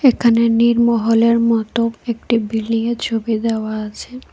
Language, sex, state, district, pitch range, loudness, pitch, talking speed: Bengali, female, Tripura, West Tripura, 225-235 Hz, -17 LUFS, 230 Hz, 110 wpm